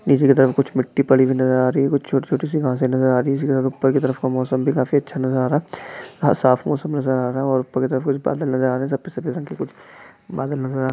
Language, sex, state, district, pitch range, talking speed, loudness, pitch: Hindi, male, Chhattisgarh, Balrampur, 130-140 Hz, 320 wpm, -20 LUFS, 135 Hz